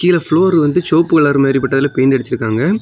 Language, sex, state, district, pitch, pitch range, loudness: Tamil, male, Tamil Nadu, Kanyakumari, 155 Hz, 135-175 Hz, -13 LUFS